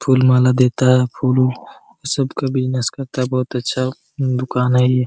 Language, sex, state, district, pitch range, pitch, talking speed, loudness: Hindi, male, Jharkhand, Jamtara, 125-130 Hz, 130 Hz, 200 wpm, -17 LUFS